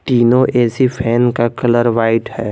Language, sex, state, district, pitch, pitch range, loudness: Hindi, male, Jharkhand, Garhwa, 120 Hz, 115-120 Hz, -14 LUFS